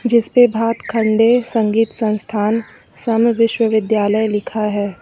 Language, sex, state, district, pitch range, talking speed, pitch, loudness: Hindi, female, Uttar Pradesh, Lucknow, 215-230 Hz, 95 wpm, 225 Hz, -16 LUFS